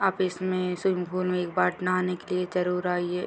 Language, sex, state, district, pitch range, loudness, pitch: Hindi, female, Bihar, Purnia, 180-185 Hz, -27 LUFS, 180 Hz